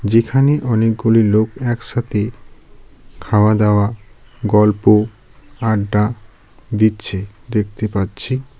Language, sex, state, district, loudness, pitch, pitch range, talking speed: Bengali, male, West Bengal, Darjeeling, -17 LUFS, 110 Hz, 105-120 Hz, 85 wpm